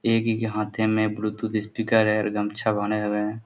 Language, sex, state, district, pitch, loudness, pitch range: Hindi, male, Bihar, Jamui, 110 Hz, -24 LUFS, 105-110 Hz